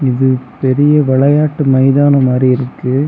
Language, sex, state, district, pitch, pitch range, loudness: Tamil, male, Tamil Nadu, Kanyakumari, 135 Hz, 130-145 Hz, -11 LUFS